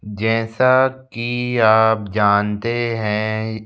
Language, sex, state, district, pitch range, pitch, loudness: Hindi, male, Madhya Pradesh, Bhopal, 110-120 Hz, 110 Hz, -18 LUFS